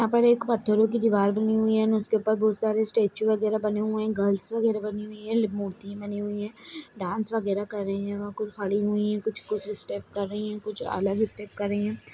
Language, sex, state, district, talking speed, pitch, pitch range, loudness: Hindi, female, Chhattisgarh, Sarguja, 230 wpm, 210 Hz, 205-220 Hz, -26 LUFS